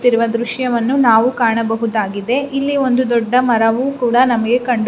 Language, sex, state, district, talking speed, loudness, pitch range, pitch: Kannada, female, Karnataka, Raichur, 125 wpm, -15 LUFS, 230-255 Hz, 240 Hz